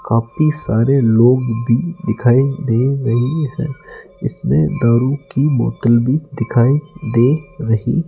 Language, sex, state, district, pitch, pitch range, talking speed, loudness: Hindi, male, Rajasthan, Jaipur, 125 Hz, 115-145 Hz, 120 wpm, -16 LUFS